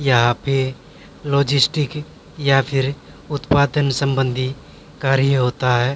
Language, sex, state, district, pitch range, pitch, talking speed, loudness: Hindi, male, Haryana, Jhajjar, 130-145 Hz, 135 Hz, 110 wpm, -19 LUFS